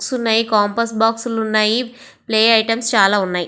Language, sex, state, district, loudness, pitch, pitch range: Telugu, female, Andhra Pradesh, Visakhapatnam, -16 LUFS, 225 Hz, 215-230 Hz